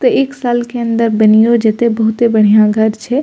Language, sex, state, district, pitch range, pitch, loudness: Maithili, female, Bihar, Purnia, 220-240 Hz, 230 Hz, -12 LUFS